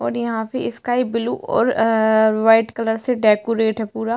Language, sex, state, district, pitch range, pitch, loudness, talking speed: Hindi, female, Uttarakhand, Tehri Garhwal, 220-230 Hz, 225 Hz, -18 LUFS, 185 wpm